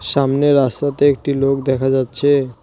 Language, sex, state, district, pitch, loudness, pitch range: Bengali, male, West Bengal, Cooch Behar, 135 Hz, -16 LUFS, 135-145 Hz